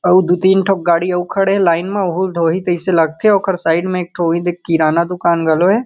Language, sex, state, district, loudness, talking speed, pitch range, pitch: Chhattisgarhi, male, Chhattisgarh, Kabirdham, -15 LUFS, 245 wpm, 170-190 Hz, 175 Hz